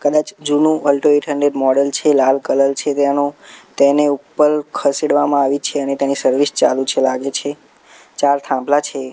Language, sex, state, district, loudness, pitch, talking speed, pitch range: Gujarati, male, Gujarat, Gandhinagar, -16 LUFS, 140 Hz, 170 wpm, 140-145 Hz